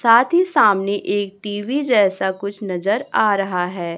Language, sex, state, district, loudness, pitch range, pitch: Hindi, female, Chhattisgarh, Raipur, -18 LUFS, 190-210 Hz, 200 Hz